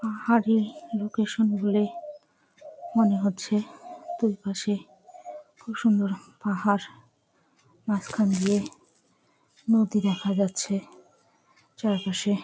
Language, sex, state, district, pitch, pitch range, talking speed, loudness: Bengali, female, West Bengal, Jalpaiguri, 210 Hz, 200-230 Hz, 75 wpm, -26 LUFS